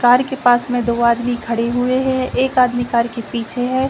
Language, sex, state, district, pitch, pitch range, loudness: Hindi, female, Uttar Pradesh, Deoria, 245 Hz, 235-255 Hz, -17 LUFS